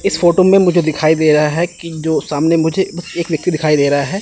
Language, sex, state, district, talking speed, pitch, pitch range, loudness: Hindi, male, Chandigarh, Chandigarh, 255 wpm, 165 Hz, 155-175 Hz, -14 LUFS